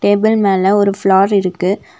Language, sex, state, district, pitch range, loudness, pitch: Tamil, female, Tamil Nadu, Nilgiris, 190-205 Hz, -13 LUFS, 200 Hz